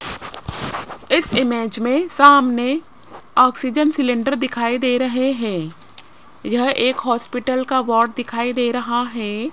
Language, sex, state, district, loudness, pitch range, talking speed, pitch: Hindi, female, Rajasthan, Jaipur, -18 LUFS, 240-265 Hz, 120 wpm, 250 Hz